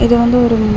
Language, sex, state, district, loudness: Tamil, female, Tamil Nadu, Chennai, -12 LUFS